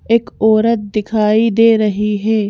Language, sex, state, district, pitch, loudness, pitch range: Hindi, female, Madhya Pradesh, Bhopal, 220 Hz, -14 LUFS, 210-225 Hz